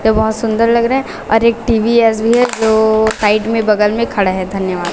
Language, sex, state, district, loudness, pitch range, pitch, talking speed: Hindi, female, Chhattisgarh, Raipur, -13 LUFS, 215-230 Hz, 220 Hz, 230 wpm